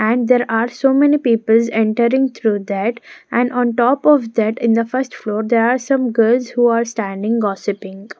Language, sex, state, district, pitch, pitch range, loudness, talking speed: English, female, Maharashtra, Gondia, 235 Hz, 220-245 Hz, -16 LUFS, 190 wpm